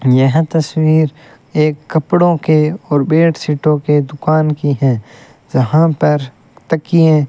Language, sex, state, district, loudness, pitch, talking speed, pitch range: Hindi, male, Rajasthan, Bikaner, -14 LUFS, 150 Hz, 125 wpm, 140-160 Hz